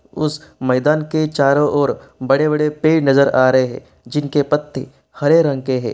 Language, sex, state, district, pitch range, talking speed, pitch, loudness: Hindi, male, Bihar, East Champaran, 130-150 Hz, 170 wpm, 145 Hz, -16 LUFS